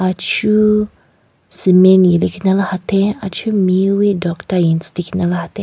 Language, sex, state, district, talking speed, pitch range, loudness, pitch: Rengma, female, Nagaland, Kohima, 95 wpm, 180-200 Hz, -14 LUFS, 190 Hz